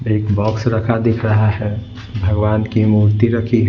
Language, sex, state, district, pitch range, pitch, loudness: Hindi, male, Bihar, Patna, 105-115 Hz, 110 Hz, -16 LUFS